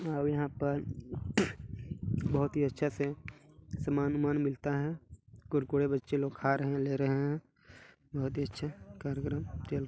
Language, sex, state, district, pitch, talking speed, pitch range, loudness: Hindi, male, Chhattisgarh, Balrampur, 140 Hz, 145 wpm, 135-145 Hz, -34 LUFS